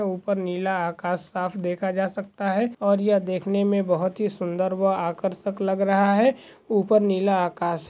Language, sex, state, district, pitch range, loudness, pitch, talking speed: Hindi, male, Goa, North and South Goa, 180-200 Hz, -24 LUFS, 195 Hz, 175 wpm